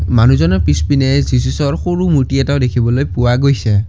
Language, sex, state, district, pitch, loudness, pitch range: Assamese, male, Assam, Kamrup Metropolitan, 125 Hz, -13 LUFS, 115-140 Hz